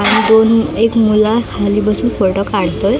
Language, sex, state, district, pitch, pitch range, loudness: Marathi, female, Maharashtra, Mumbai Suburban, 215 Hz, 200-225 Hz, -13 LUFS